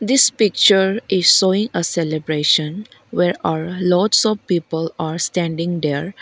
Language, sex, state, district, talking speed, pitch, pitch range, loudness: English, female, Arunachal Pradesh, Lower Dibang Valley, 135 wpm, 180 Hz, 160-200 Hz, -17 LUFS